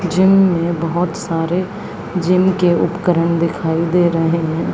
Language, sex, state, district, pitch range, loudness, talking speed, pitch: Hindi, female, Haryana, Charkhi Dadri, 165-180 Hz, -16 LUFS, 140 wpm, 175 Hz